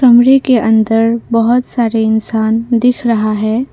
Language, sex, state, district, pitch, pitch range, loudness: Hindi, female, Assam, Kamrup Metropolitan, 230 Hz, 220-245 Hz, -12 LUFS